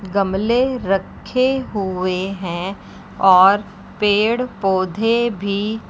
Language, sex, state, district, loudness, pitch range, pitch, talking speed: Hindi, female, Chandigarh, Chandigarh, -18 LUFS, 190-225 Hz, 200 Hz, 80 wpm